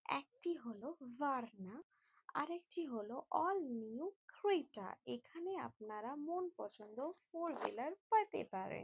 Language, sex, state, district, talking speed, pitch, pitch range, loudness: Bengali, female, West Bengal, Jalpaiguri, 115 wpm, 310 Hz, 230-365 Hz, -43 LUFS